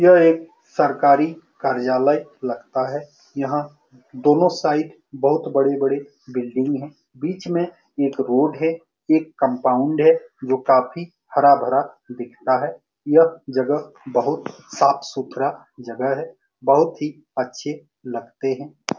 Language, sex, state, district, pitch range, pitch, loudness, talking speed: Hindi, male, Bihar, Saran, 130-160 Hz, 145 Hz, -20 LUFS, 120 wpm